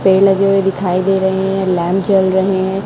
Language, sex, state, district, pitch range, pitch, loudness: Hindi, male, Chhattisgarh, Raipur, 190-195 Hz, 190 Hz, -14 LUFS